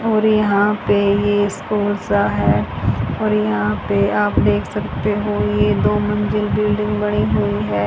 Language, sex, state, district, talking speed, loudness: Hindi, female, Haryana, Charkhi Dadri, 160 wpm, -18 LUFS